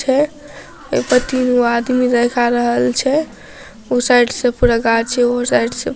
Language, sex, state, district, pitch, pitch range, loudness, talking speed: Maithili, female, Bihar, Samastipur, 245 Hz, 240-255 Hz, -15 LUFS, 190 wpm